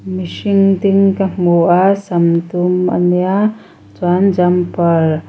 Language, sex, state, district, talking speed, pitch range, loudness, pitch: Mizo, female, Mizoram, Aizawl, 135 wpm, 175-195 Hz, -13 LUFS, 180 Hz